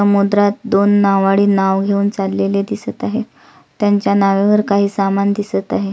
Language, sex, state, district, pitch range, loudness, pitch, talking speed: Marathi, female, Maharashtra, Solapur, 195-205 Hz, -15 LUFS, 200 Hz, 140 wpm